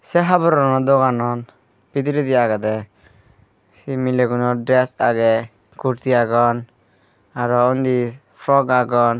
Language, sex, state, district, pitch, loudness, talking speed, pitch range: Chakma, female, Tripura, Dhalai, 120 Hz, -18 LUFS, 100 wpm, 115-130 Hz